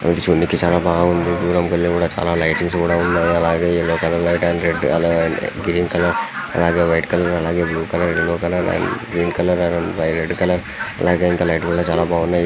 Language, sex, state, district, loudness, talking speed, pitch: Telugu, male, Andhra Pradesh, Guntur, -18 LUFS, 170 wpm, 85 Hz